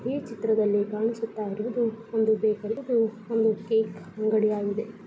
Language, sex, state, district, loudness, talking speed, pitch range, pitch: Kannada, female, Karnataka, Bijapur, -27 LUFS, 130 wpm, 215-225 Hz, 220 Hz